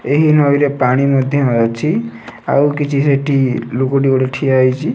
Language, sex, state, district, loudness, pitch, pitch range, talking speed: Odia, male, Odisha, Nuapada, -14 LUFS, 135 Hz, 130-145 Hz, 145 wpm